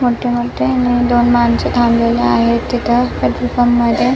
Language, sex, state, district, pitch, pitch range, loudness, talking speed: Marathi, female, Maharashtra, Nagpur, 240 Hz, 235-245 Hz, -14 LUFS, 145 wpm